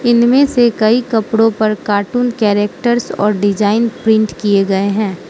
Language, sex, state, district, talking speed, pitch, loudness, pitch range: Hindi, female, Manipur, Imphal West, 145 wpm, 220 Hz, -13 LUFS, 205-235 Hz